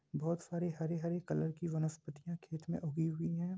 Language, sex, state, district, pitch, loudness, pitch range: Hindi, male, Bihar, Samastipur, 170 Hz, -39 LUFS, 160-170 Hz